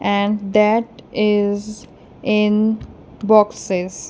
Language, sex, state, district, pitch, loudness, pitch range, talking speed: English, female, Punjab, Kapurthala, 210 Hz, -18 LUFS, 205-215 Hz, 75 wpm